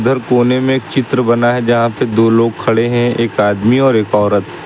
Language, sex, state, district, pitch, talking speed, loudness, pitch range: Hindi, male, Uttar Pradesh, Lucknow, 120 Hz, 230 wpm, -13 LUFS, 115-125 Hz